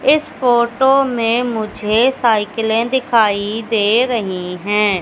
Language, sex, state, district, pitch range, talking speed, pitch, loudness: Hindi, female, Madhya Pradesh, Katni, 210-245 Hz, 105 wpm, 225 Hz, -16 LUFS